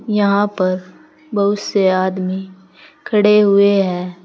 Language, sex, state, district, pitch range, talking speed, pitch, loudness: Hindi, female, Uttar Pradesh, Saharanpur, 185-210 Hz, 115 wpm, 200 Hz, -16 LUFS